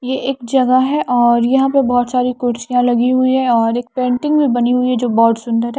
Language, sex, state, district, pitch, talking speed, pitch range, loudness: Hindi, female, Haryana, Charkhi Dadri, 250 Hz, 240 wpm, 240-260 Hz, -15 LUFS